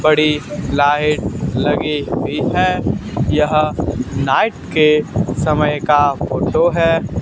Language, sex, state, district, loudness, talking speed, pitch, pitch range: Hindi, male, Haryana, Charkhi Dadri, -16 LUFS, 100 wpm, 150 Hz, 140-155 Hz